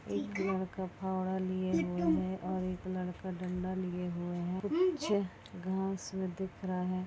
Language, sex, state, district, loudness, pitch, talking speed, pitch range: Hindi, female, West Bengal, Malda, -36 LUFS, 185 Hz, 160 wpm, 180-190 Hz